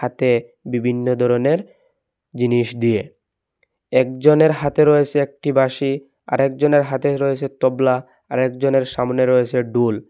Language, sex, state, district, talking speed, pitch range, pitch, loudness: Bengali, male, Assam, Hailakandi, 120 wpm, 125-140 Hz, 130 Hz, -18 LUFS